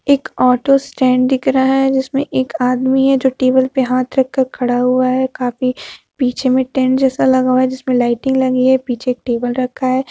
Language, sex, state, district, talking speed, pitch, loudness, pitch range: Hindi, female, Bihar, Vaishali, 210 wpm, 260 Hz, -15 LUFS, 255-265 Hz